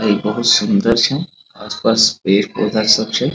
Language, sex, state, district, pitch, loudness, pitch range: Maithili, male, Bihar, Muzaffarpur, 110 Hz, -14 LUFS, 105-135 Hz